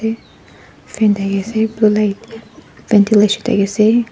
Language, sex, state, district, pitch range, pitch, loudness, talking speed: Nagamese, female, Nagaland, Dimapur, 205-225 Hz, 215 Hz, -15 LUFS, 115 wpm